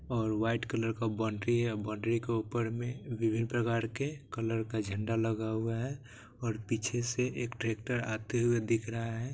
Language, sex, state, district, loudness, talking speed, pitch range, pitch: Maithili, male, Bihar, Supaul, -34 LUFS, 185 wpm, 110-120 Hz, 115 Hz